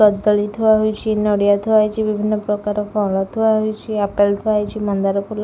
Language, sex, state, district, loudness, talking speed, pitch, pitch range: Odia, female, Odisha, Khordha, -18 LUFS, 175 wpm, 210 Hz, 205-215 Hz